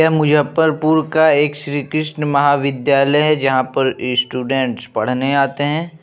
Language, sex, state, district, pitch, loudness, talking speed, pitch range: Hindi, male, Bihar, Begusarai, 145 Hz, -16 LUFS, 140 wpm, 135-155 Hz